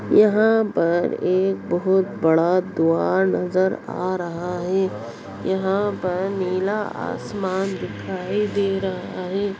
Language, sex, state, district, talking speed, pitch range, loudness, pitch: Hindi, female, Bihar, Bhagalpur, 110 wpm, 180-195 Hz, -22 LUFS, 190 Hz